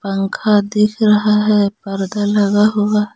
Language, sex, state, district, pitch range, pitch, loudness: Hindi, female, Jharkhand, Garhwa, 200-210 Hz, 210 Hz, -15 LUFS